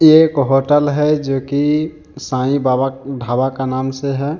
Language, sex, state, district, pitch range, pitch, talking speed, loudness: Hindi, male, Jharkhand, Deoghar, 135-150 Hz, 140 Hz, 165 wpm, -16 LUFS